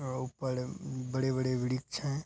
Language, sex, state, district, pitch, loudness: Hindi, female, Bihar, Araria, 130 Hz, -34 LUFS